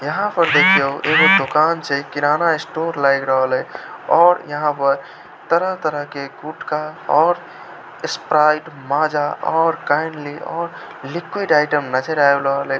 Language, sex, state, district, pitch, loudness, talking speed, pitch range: Maithili, male, Bihar, Samastipur, 150 Hz, -17 LUFS, 110 wpm, 140-165 Hz